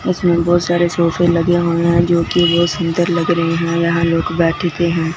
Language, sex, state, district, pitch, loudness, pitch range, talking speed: Hindi, male, Punjab, Fazilka, 170 Hz, -15 LUFS, 170-175 Hz, 210 wpm